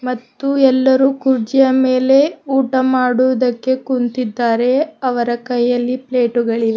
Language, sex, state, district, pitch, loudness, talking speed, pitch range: Kannada, female, Karnataka, Bidar, 255 Hz, -15 LUFS, 90 wpm, 245-265 Hz